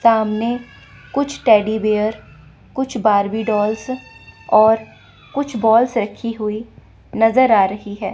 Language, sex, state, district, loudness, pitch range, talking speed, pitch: Hindi, female, Chandigarh, Chandigarh, -17 LUFS, 215-240 Hz, 120 wpm, 220 Hz